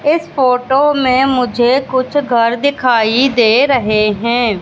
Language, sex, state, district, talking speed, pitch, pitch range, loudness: Hindi, female, Madhya Pradesh, Katni, 130 wpm, 255 Hz, 235-270 Hz, -13 LUFS